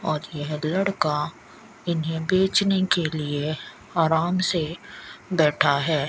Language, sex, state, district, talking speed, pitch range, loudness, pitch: Hindi, female, Rajasthan, Bikaner, 110 wpm, 150-180 Hz, -24 LUFS, 160 Hz